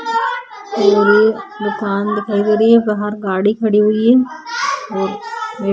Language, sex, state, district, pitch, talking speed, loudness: Hindi, female, Bihar, Vaishali, 215 Hz, 155 wpm, -15 LUFS